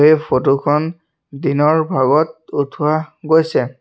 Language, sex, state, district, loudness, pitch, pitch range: Assamese, male, Assam, Sonitpur, -16 LUFS, 155 Hz, 145-160 Hz